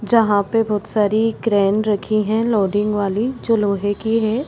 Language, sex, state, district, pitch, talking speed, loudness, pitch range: Hindi, female, Uttar Pradesh, Budaun, 215 Hz, 175 wpm, -18 LUFS, 205-225 Hz